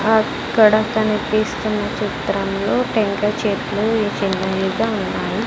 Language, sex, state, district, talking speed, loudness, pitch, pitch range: Telugu, female, Andhra Pradesh, Sri Satya Sai, 65 wpm, -19 LUFS, 215 Hz, 205-220 Hz